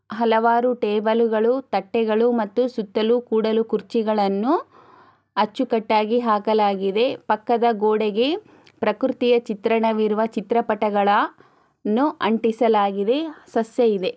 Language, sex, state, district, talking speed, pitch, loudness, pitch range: Kannada, female, Karnataka, Chamarajanagar, 80 wpm, 225 Hz, -21 LUFS, 215-245 Hz